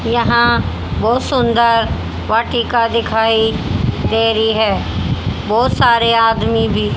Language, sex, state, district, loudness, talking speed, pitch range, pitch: Hindi, female, Haryana, Rohtak, -15 LUFS, 105 wpm, 225-235 Hz, 230 Hz